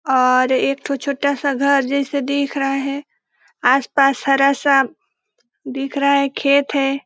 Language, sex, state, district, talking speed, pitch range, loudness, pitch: Hindi, female, Chhattisgarh, Balrampur, 155 wpm, 275-280 Hz, -17 LUFS, 275 Hz